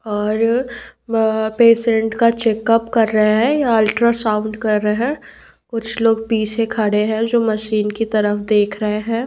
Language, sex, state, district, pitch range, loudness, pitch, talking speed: Hindi, female, Bihar, Patna, 215-230 Hz, -17 LUFS, 225 Hz, 175 wpm